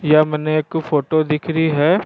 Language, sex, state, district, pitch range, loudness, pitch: Rajasthani, male, Rajasthan, Churu, 150-160 Hz, -18 LUFS, 155 Hz